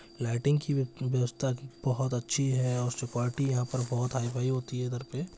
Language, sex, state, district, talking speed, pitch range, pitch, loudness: Hindi, male, Bihar, Jahanabad, 180 wpm, 125-135 Hz, 125 Hz, -31 LUFS